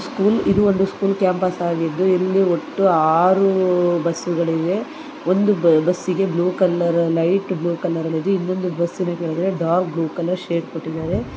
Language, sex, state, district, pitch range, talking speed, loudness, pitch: Kannada, female, Karnataka, Mysore, 170-190 Hz, 115 wpm, -19 LUFS, 180 Hz